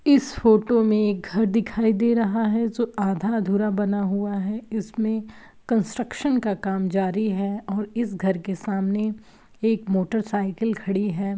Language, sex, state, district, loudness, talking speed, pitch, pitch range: Hindi, female, Uttar Pradesh, Etah, -23 LUFS, 160 wpm, 215 Hz, 195-225 Hz